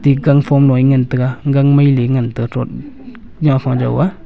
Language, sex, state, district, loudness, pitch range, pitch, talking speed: Wancho, male, Arunachal Pradesh, Longding, -13 LUFS, 130-145 Hz, 140 Hz, 210 wpm